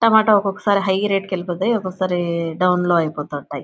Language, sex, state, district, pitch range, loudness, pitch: Telugu, female, Andhra Pradesh, Anantapur, 170-200 Hz, -19 LUFS, 185 Hz